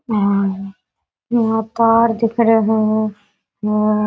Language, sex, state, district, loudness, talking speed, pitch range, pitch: Rajasthani, female, Rajasthan, Nagaur, -16 LUFS, 120 wpm, 210-230 Hz, 220 Hz